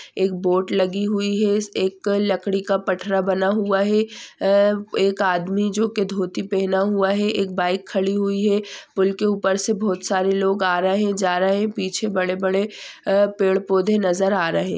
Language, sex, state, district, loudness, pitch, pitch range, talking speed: Hindi, female, Chhattisgarh, Rajnandgaon, -21 LUFS, 195 Hz, 190-205 Hz, 185 wpm